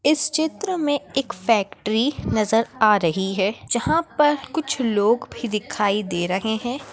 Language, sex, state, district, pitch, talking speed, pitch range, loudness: Hindi, female, Maharashtra, Pune, 230 Hz, 155 wpm, 205-290 Hz, -22 LUFS